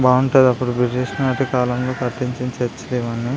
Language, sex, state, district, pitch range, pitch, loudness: Telugu, male, Andhra Pradesh, Visakhapatnam, 125-130 Hz, 125 Hz, -19 LUFS